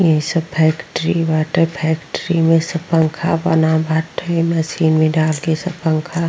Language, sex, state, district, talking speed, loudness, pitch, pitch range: Bhojpuri, female, Uttar Pradesh, Gorakhpur, 160 wpm, -17 LUFS, 160 Hz, 160-165 Hz